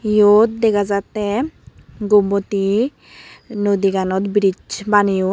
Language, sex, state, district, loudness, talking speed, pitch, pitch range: Chakma, female, Tripura, Unakoti, -17 LUFS, 80 wpm, 205 Hz, 200-210 Hz